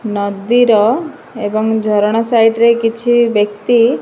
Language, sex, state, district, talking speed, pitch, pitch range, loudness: Odia, male, Odisha, Malkangiri, 90 wpm, 225 Hz, 210-235 Hz, -13 LUFS